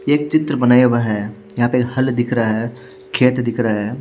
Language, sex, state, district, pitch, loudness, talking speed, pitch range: Hindi, male, Chhattisgarh, Raipur, 125 Hz, -17 LUFS, 225 wpm, 115-130 Hz